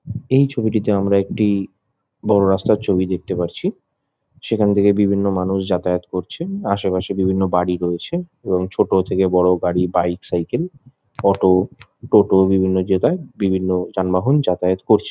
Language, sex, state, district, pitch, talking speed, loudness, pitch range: Bengali, male, West Bengal, Jhargram, 95 Hz, 135 wpm, -18 LUFS, 90-110 Hz